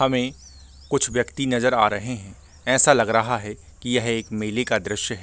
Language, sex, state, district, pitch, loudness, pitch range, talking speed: Hindi, male, Chhattisgarh, Bilaspur, 115 Hz, -22 LUFS, 105-125 Hz, 220 wpm